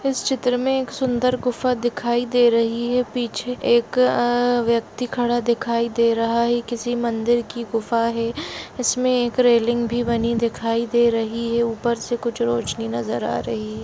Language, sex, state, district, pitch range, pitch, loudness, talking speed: Hindi, female, Chhattisgarh, Raigarh, 230-245 Hz, 235 Hz, -21 LUFS, 175 wpm